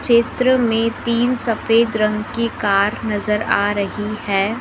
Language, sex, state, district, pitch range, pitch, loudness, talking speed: Hindi, female, Madhya Pradesh, Dhar, 210-235 Hz, 225 Hz, -18 LUFS, 145 wpm